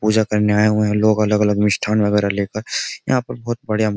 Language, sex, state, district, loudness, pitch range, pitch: Hindi, male, Uttar Pradesh, Jyotiba Phule Nagar, -18 LUFS, 105-110 Hz, 105 Hz